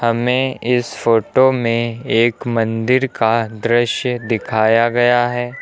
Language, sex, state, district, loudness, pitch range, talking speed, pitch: Hindi, male, Uttar Pradesh, Lucknow, -16 LUFS, 115-125 Hz, 115 wpm, 120 Hz